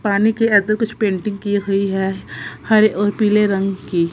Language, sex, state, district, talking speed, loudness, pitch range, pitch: Hindi, female, Punjab, Kapurthala, 205 wpm, -17 LUFS, 195-215 Hz, 205 Hz